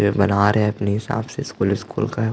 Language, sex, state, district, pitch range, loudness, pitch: Hindi, male, Chhattisgarh, Jashpur, 100-110 Hz, -21 LUFS, 105 Hz